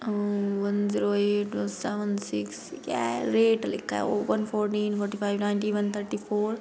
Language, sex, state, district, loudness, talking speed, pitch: Hindi, female, Bihar, Bhagalpur, -28 LUFS, 180 wpm, 205 Hz